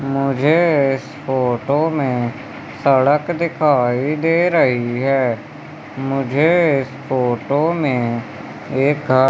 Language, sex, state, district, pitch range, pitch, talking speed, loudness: Hindi, male, Madhya Pradesh, Umaria, 130-150 Hz, 135 Hz, 95 wpm, -17 LUFS